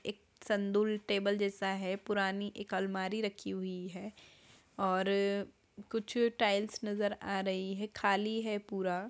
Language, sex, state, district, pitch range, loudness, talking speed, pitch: Hindi, female, Bihar, Araria, 195-210 Hz, -35 LUFS, 140 wpm, 200 Hz